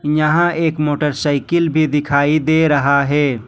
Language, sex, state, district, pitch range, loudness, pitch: Hindi, male, Jharkhand, Ranchi, 145-155 Hz, -15 LUFS, 150 Hz